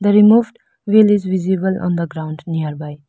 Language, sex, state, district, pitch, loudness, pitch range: English, female, Arunachal Pradesh, Lower Dibang Valley, 185 Hz, -16 LUFS, 160-205 Hz